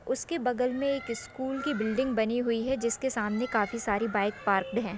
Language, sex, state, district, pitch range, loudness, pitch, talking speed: Hindi, female, Maharashtra, Solapur, 220-260 Hz, -29 LUFS, 235 Hz, 205 wpm